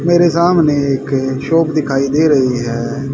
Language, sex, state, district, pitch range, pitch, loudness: Hindi, male, Haryana, Rohtak, 135-165 Hz, 140 Hz, -14 LUFS